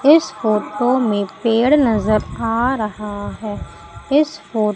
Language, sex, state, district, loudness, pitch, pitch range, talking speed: Hindi, female, Madhya Pradesh, Umaria, -18 LUFS, 225 Hz, 210-260 Hz, 125 wpm